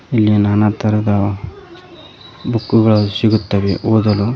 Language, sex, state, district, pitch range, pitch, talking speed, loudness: Kannada, male, Karnataka, Koppal, 100-110 Hz, 105 Hz, 85 wpm, -15 LUFS